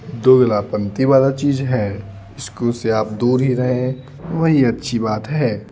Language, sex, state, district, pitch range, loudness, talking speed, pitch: Hindi, male, Bihar, Patna, 110-135 Hz, -17 LUFS, 155 wpm, 125 Hz